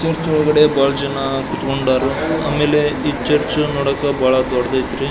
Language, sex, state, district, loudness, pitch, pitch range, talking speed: Kannada, male, Karnataka, Belgaum, -17 LUFS, 140 Hz, 135-150 Hz, 130 wpm